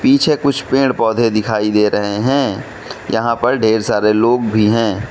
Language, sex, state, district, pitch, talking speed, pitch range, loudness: Hindi, male, Manipur, Imphal West, 115 Hz, 175 wpm, 110-130 Hz, -15 LUFS